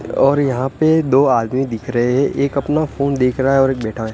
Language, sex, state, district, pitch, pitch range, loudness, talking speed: Hindi, male, Gujarat, Gandhinagar, 135 Hz, 125-140 Hz, -16 LUFS, 245 wpm